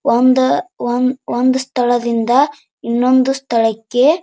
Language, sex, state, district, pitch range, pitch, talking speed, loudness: Kannada, male, Karnataka, Dharwad, 240-260 Hz, 250 Hz, 85 wpm, -15 LUFS